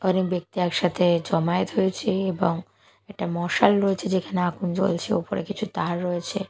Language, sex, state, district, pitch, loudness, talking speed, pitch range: Bengali, female, Odisha, Malkangiri, 180 Hz, -24 LUFS, 150 wpm, 175-195 Hz